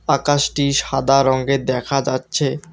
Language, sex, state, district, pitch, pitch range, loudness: Bengali, male, West Bengal, Alipurduar, 140 Hz, 130-145 Hz, -18 LUFS